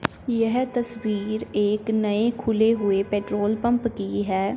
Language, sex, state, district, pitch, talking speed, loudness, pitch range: Hindi, female, Punjab, Fazilka, 220 Hz, 130 wpm, -24 LUFS, 205-235 Hz